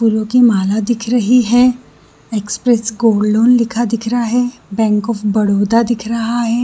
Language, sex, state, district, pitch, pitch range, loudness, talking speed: Hindi, female, Jharkhand, Sahebganj, 230 Hz, 215-240 Hz, -14 LUFS, 180 wpm